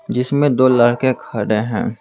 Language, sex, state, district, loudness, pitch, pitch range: Hindi, male, Bihar, Patna, -16 LUFS, 125 Hz, 110-130 Hz